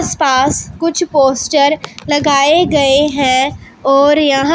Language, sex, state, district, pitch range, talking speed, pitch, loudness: Hindi, female, Punjab, Pathankot, 275-300 Hz, 120 wpm, 285 Hz, -12 LUFS